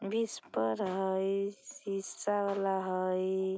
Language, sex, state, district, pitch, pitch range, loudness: Bajjika, female, Bihar, Vaishali, 195 Hz, 190-200 Hz, -34 LUFS